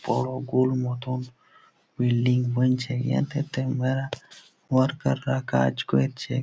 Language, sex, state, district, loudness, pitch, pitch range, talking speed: Bengali, male, West Bengal, Jalpaiguri, -25 LUFS, 130 Hz, 125-130 Hz, 105 wpm